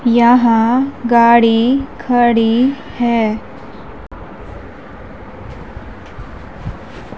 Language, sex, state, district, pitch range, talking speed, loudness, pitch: Hindi, male, Madhya Pradesh, Umaria, 230-245 Hz, 35 wpm, -13 LUFS, 235 Hz